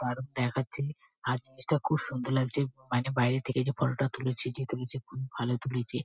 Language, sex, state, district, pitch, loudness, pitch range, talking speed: Bengali, female, West Bengal, Kolkata, 130 Hz, -32 LUFS, 125-135 Hz, 190 wpm